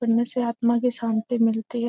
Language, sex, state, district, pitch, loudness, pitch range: Hindi, female, Bihar, Gopalganj, 235 Hz, -23 LUFS, 230-240 Hz